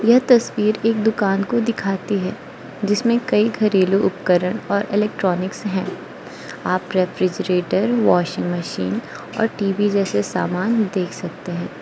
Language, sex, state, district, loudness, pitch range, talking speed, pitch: Hindi, female, Arunachal Pradesh, Lower Dibang Valley, -20 LUFS, 185-220 Hz, 125 wpm, 200 Hz